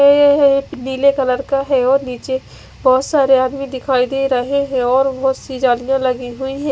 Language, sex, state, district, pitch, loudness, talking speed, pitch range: Hindi, female, Odisha, Khordha, 265 Hz, -16 LUFS, 180 wpm, 255-275 Hz